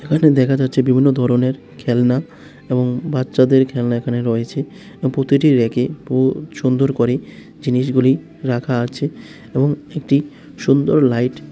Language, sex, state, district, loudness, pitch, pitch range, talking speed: Bengali, male, Tripura, West Tripura, -17 LUFS, 130 Hz, 125-140 Hz, 125 wpm